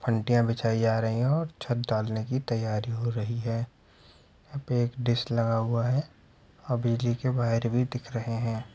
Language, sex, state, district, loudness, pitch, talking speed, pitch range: Hindi, male, Uttar Pradesh, Budaun, -28 LUFS, 115 Hz, 180 wpm, 115-125 Hz